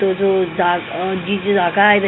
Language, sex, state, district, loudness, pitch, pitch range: Marathi, female, Maharashtra, Mumbai Suburban, -17 LUFS, 190 Hz, 180-200 Hz